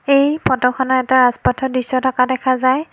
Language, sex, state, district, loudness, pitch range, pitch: Assamese, female, Assam, Kamrup Metropolitan, -16 LUFS, 255-265 Hz, 260 Hz